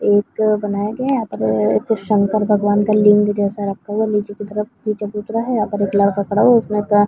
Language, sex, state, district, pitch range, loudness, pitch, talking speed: Hindi, female, Chhattisgarh, Bilaspur, 205-215 Hz, -17 LUFS, 210 Hz, 245 wpm